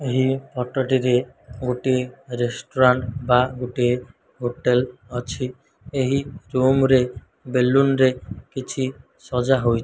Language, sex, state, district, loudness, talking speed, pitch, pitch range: Odia, male, Odisha, Malkangiri, -22 LUFS, 110 wpm, 125 Hz, 125-130 Hz